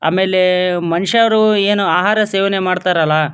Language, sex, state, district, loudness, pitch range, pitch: Kannada, male, Karnataka, Dharwad, -14 LUFS, 180-205 Hz, 185 Hz